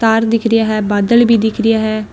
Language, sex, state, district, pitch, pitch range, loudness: Marwari, female, Rajasthan, Nagaur, 225 Hz, 215-230 Hz, -13 LUFS